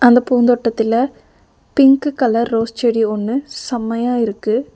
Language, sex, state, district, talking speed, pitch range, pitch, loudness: Tamil, female, Tamil Nadu, Nilgiris, 115 wpm, 225-250 Hz, 240 Hz, -16 LUFS